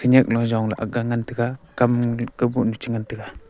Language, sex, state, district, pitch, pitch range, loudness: Wancho, male, Arunachal Pradesh, Longding, 120 Hz, 110-120 Hz, -22 LUFS